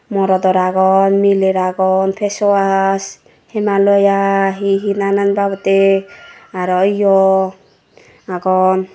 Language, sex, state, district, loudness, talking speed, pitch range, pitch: Chakma, female, Tripura, Dhalai, -14 LUFS, 85 wpm, 190-200 Hz, 195 Hz